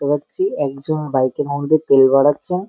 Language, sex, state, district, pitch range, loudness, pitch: Bengali, male, West Bengal, Malda, 135-155 Hz, -17 LUFS, 145 Hz